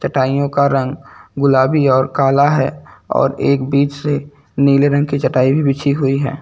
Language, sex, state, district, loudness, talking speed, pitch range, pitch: Hindi, male, Uttar Pradesh, Lucknow, -15 LUFS, 175 wpm, 135-145 Hz, 140 Hz